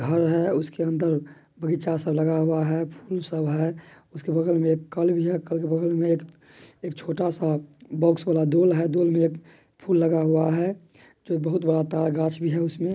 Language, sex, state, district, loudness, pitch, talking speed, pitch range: Maithili, male, Bihar, Madhepura, -24 LUFS, 165 Hz, 220 wpm, 160-170 Hz